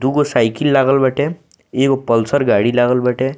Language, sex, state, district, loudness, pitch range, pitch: Bhojpuri, male, Bihar, Muzaffarpur, -15 LUFS, 125-140 Hz, 130 Hz